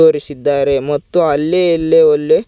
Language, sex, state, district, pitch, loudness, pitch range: Kannada, male, Karnataka, Koppal, 160 Hz, -13 LUFS, 145-180 Hz